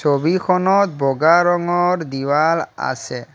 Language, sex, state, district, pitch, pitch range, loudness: Assamese, male, Assam, Kamrup Metropolitan, 165 Hz, 145-175 Hz, -17 LUFS